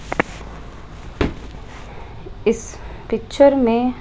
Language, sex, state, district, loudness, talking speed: Hindi, female, Rajasthan, Jaipur, -19 LUFS, 45 wpm